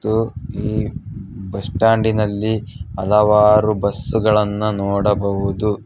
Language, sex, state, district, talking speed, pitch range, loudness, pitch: Kannada, male, Karnataka, Bangalore, 70 wpm, 100-110 Hz, -18 LUFS, 105 Hz